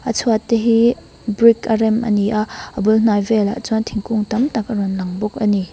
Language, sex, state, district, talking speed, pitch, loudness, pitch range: Mizo, female, Mizoram, Aizawl, 230 wpm, 220 Hz, -17 LUFS, 210-225 Hz